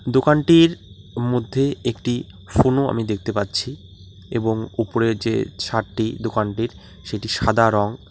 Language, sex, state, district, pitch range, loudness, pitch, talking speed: Bengali, male, West Bengal, Alipurduar, 105-125 Hz, -21 LUFS, 115 Hz, 105 wpm